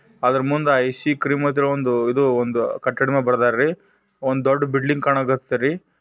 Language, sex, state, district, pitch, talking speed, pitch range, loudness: Kannada, male, Karnataka, Bijapur, 135 Hz, 140 wpm, 125-145 Hz, -20 LUFS